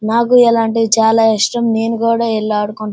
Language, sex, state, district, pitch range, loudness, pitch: Telugu, female, Andhra Pradesh, Srikakulam, 215-230 Hz, -13 LUFS, 225 Hz